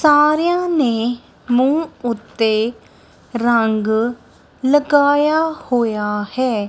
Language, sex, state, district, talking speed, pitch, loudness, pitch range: Punjabi, female, Punjab, Kapurthala, 70 wpm, 245 Hz, -17 LUFS, 225-295 Hz